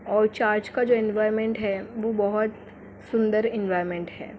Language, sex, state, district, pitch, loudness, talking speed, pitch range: Hindi, female, Jharkhand, Jamtara, 215 Hz, -25 LUFS, 150 wpm, 205-220 Hz